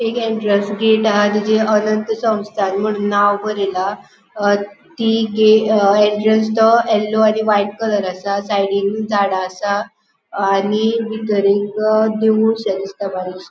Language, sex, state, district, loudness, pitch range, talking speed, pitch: Konkani, female, Goa, North and South Goa, -16 LUFS, 200-220 Hz, 140 wpm, 210 Hz